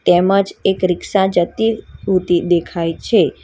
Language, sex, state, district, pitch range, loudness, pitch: Gujarati, female, Gujarat, Valsad, 175-195 Hz, -16 LUFS, 185 Hz